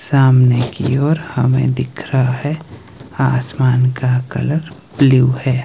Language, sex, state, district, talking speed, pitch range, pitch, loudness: Hindi, male, Himachal Pradesh, Shimla, 125 wpm, 125-140 Hz, 130 Hz, -15 LUFS